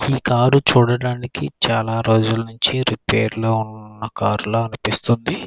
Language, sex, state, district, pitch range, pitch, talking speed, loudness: Telugu, male, Andhra Pradesh, Krishna, 110-125 Hz, 115 Hz, 100 wpm, -18 LUFS